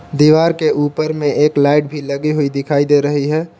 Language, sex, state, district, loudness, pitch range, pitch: Hindi, male, Jharkhand, Palamu, -15 LUFS, 145-155 Hz, 150 Hz